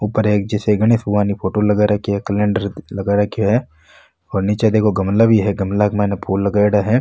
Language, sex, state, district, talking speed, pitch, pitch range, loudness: Marwari, male, Rajasthan, Nagaur, 220 wpm, 105 Hz, 100-105 Hz, -17 LUFS